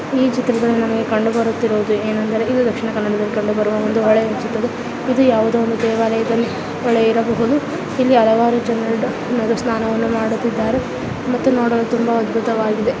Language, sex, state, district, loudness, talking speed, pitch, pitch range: Kannada, female, Karnataka, Dakshina Kannada, -17 LUFS, 125 wpm, 230 Hz, 225-240 Hz